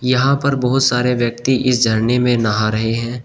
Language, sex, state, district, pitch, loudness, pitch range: Hindi, male, Uttar Pradesh, Shamli, 125 Hz, -16 LUFS, 115-125 Hz